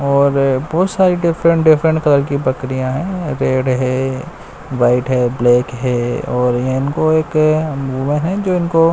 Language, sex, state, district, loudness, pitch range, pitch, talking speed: Hindi, male, Bihar, West Champaran, -15 LUFS, 130-160 Hz, 140 Hz, 150 wpm